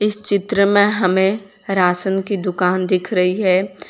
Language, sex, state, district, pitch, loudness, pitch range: Hindi, female, Gujarat, Valsad, 195 Hz, -16 LUFS, 185-200 Hz